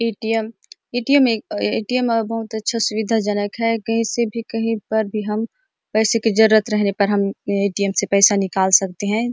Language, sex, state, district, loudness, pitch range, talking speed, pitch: Hindi, female, Chhattisgarh, Bastar, -19 LUFS, 205-230 Hz, 175 wpm, 220 Hz